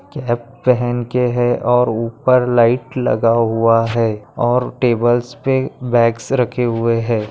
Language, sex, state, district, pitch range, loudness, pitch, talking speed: Hindi, male, Maharashtra, Nagpur, 115-125 Hz, -16 LUFS, 120 Hz, 140 wpm